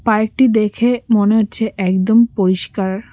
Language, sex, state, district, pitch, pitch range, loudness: Bengali, female, West Bengal, Cooch Behar, 215 Hz, 195-225 Hz, -15 LUFS